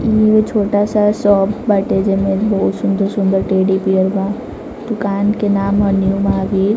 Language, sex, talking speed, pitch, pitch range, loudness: Bhojpuri, female, 135 wpm, 200 Hz, 195-210 Hz, -15 LUFS